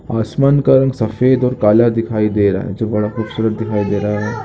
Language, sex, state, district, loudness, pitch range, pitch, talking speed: Hindi, male, Chhattisgarh, Jashpur, -15 LUFS, 105-125 Hz, 110 Hz, 245 wpm